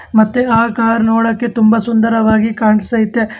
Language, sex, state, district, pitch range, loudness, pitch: Kannada, male, Karnataka, Bangalore, 220-230 Hz, -13 LUFS, 225 Hz